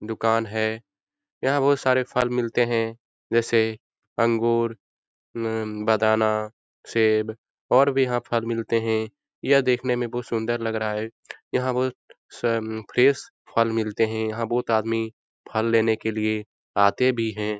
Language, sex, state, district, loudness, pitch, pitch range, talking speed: Hindi, male, Bihar, Jahanabad, -24 LUFS, 115 Hz, 110-120 Hz, 145 wpm